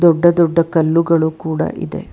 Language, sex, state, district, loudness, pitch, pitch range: Kannada, female, Karnataka, Bangalore, -15 LUFS, 165 Hz, 160-170 Hz